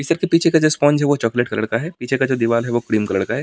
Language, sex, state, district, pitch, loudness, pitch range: Hindi, male, Delhi, New Delhi, 130 Hz, -18 LUFS, 115-150 Hz